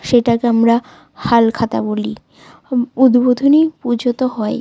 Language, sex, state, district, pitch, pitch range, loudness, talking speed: Bengali, female, West Bengal, Jalpaiguri, 240 Hz, 230-250 Hz, -15 LUFS, 105 wpm